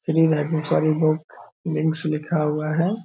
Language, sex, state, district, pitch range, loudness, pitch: Hindi, male, Bihar, Purnia, 155-160 Hz, -22 LUFS, 155 Hz